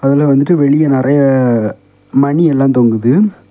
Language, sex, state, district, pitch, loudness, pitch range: Tamil, male, Tamil Nadu, Kanyakumari, 135 Hz, -11 LUFS, 125-145 Hz